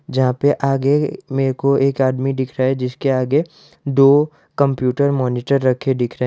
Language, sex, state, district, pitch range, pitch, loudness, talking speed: Hindi, male, Gujarat, Valsad, 130-140 Hz, 135 Hz, -17 LUFS, 180 wpm